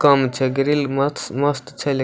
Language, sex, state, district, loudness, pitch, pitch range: Maithili, male, Bihar, Supaul, -20 LUFS, 140 Hz, 135-145 Hz